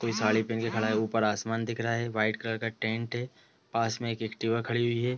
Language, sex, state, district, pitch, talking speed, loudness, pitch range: Hindi, male, Bihar, East Champaran, 115 Hz, 265 wpm, -30 LUFS, 110-115 Hz